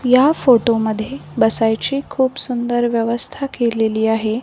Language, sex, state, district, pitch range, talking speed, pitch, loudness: Marathi, female, Maharashtra, Gondia, 225-260 Hz, 120 wpm, 235 Hz, -17 LUFS